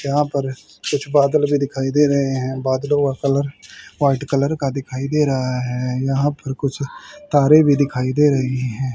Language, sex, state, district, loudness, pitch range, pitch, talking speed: Hindi, male, Haryana, Rohtak, -19 LUFS, 130-145 Hz, 140 Hz, 190 wpm